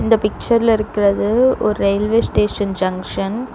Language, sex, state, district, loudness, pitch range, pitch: Tamil, female, Tamil Nadu, Chennai, -17 LUFS, 200-230 Hz, 210 Hz